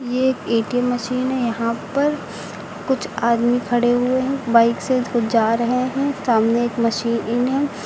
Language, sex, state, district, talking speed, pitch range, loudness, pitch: Hindi, female, Uttar Pradesh, Lucknow, 160 wpm, 230-255 Hz, -19 LUFS, 240 Hz